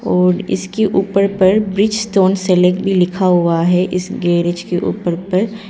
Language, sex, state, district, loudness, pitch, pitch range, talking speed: Hindi, female, Arunachal Pradesh, Papum Pare, -15 LUFS, 185 Hz, 180-195 Hz, 160 wpm